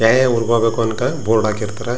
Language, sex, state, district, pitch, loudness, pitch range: Kannada, male, Karnataka, Chamarajanagar, 115 Hz, -17 LUFS, 110-120 Hz